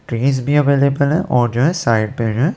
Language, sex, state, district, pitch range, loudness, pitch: Hindi, male, Chandigarh, Chandigarh, 120-145 Hz, -16 LUFS, 140 Hz